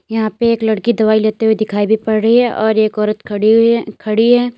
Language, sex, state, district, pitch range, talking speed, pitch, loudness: Hindi, female, Uttar Pradesh, Lalitpur, 215-230 Hz, 260 wpm, 220 Hz, -14 LUFS